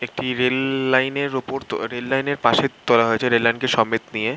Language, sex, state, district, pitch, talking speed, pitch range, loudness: Bengali, male, West Bengal, Malda, 125 Hz, 205 wpm, 115-135 Hz, -20 LUFS